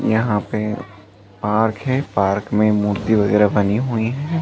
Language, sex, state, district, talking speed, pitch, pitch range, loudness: Hindi, male, Chhattisgarh, Balrampur, 150 wpm, 105 Hz, 105-110 Hz, -19 LUFS